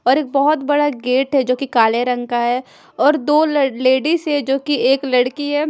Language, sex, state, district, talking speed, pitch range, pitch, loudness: Hindi, female, Punjab, Fazilka, 210 wpm, 250-290 Hz, 270 Hz, -17 LUFS